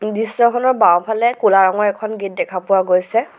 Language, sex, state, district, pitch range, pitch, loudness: Assamese, female, Assam, Sonitpur, 190-230 Hz, 215 Hz, -16 LUFS